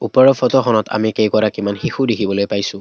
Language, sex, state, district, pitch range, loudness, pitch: Assamese, male, Assam, Kamrup Metropolitan, 100-130 Hz, -16 LUFS, 110 Hz